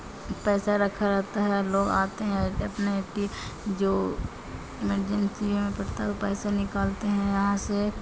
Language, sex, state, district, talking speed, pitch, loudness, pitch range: Maithili, female, Bihar, Samastipur, 150 wpm, 200 Hz, -28 LUFS, 200-205 Hz